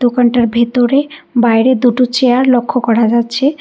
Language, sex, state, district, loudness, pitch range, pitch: Bengali, female, Karnataka, Bangalore, -12 LUFS, 235-255 Hz, 245 Hz